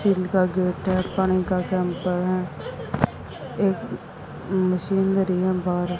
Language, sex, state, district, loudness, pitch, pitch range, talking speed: Hindi, female, Haryana, Jhajjar, -24 LUFS, 185 Hz, 180-190 Hz, 120 wpm